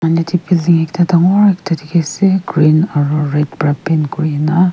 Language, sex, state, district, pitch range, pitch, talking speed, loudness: Nagamese, female, Nagaland, Kohima, 150-175 Hz, 165 Hz, 175 wpm, -13 LUFS